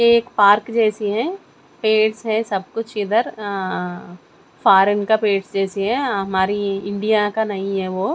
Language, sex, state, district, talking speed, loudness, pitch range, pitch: Hindi, female, Chandigarh, Chandigarh, 170 wpm, -19 LUFS, 195-220 Hz, 205 Hz